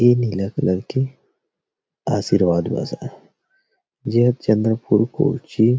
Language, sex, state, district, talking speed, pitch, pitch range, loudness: Chhattisgarhi, male, Chhattisgarh, Rajnandgaon, 95 wpm, 120 Hz, 110-135 Hz, -20 LUFS